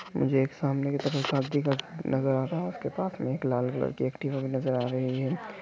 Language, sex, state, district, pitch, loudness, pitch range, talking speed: Hindi, male, Jharkhand, Sahebganj, 135 Hz, -29 LUFS, 130-145 Hz, 265 wpm